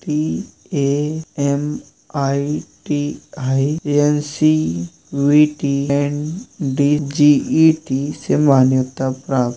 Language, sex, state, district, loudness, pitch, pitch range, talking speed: Hindi, male, Uttar Pradesh, Jyotiba Phule Nagar, -18 LUFS, 145 Hz, 140-150 Hz, 65 wpm